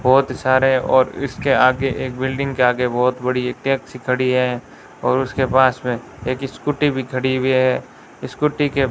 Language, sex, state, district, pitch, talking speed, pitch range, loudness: Hindi, male, Rajasthan, Bikaner, 130 Hz, 180 wpm, 125-135 Hz, -19 LUFS